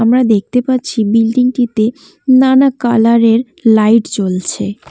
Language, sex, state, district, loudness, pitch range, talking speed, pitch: Bengali, female, West Bengal, Cooch Behar, -12 LUFS, 220-250 Hz, 120 wpm, 235 Hz